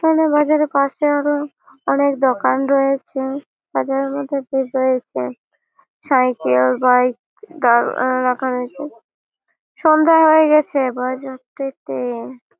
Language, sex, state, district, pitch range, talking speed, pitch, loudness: Bengali, female, West Bengal, Malda, 255-295 Hz, 95 wpm, 270 Hz, -17 LUFS